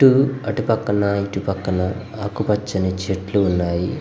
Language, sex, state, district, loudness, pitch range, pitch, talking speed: Telugu, male, Andhra Pradesh, Guntur, -21 LUFS, 95-110 Hz, 100 Hz, 135 wpm